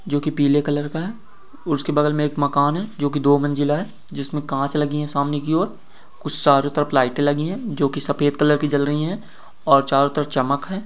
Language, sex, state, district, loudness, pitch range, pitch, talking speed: Hindi, male, Chhattisgarh, Bastar, -20 LUFS, 145-150 Hz, 145 Hz, 240 wpm